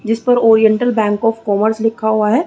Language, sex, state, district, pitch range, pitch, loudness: Hindi, female, Chhattisgarh, Rajnandgaon, 215-225 Hz, 220 Hz, -14 LUFS